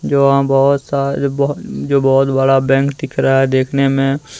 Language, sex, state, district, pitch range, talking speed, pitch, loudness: Hindi, male, Jharkhand, Deoghar, 135-140 Hz, 205 wpm, 140 Hz, -14 LUFS